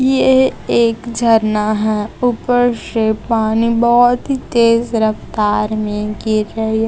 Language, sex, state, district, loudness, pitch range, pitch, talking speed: Hindi, female, Chhattisgarh, Raipur, -15 LUFS, 215-240 Hz, 225 Hz, 130 wpm